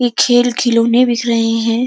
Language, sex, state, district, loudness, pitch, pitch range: Hindi, female, Uttar Pradesh, Jyotiba Phule Nagar, -13 LUFS, 240 Hz, 230-245 Hz